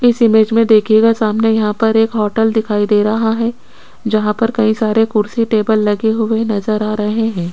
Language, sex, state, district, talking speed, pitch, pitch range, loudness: Hindi, female, Rajasthan, Jaipur, 200 wpm, 220 Hz, 215-225 Hz, -14 LUFS